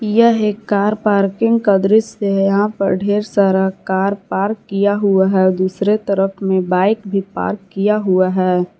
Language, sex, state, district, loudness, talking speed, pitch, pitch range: Hindi, female, Jharkhand, Garhwa, -16 LUFS, 170 wpm, 200 Hz, 190-210 Hz